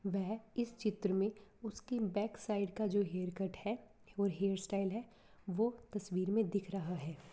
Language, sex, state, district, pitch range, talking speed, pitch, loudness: Hindi, female, Bihar, East Champaran, 195-220 Hz, 190 wpm, 205 Hz, -39 LUFS